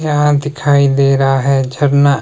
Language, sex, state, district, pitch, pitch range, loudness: Hindi, male, Himachal Pradesh, Shimla, 140 Hz, 135-145 Hz, -12 LUFS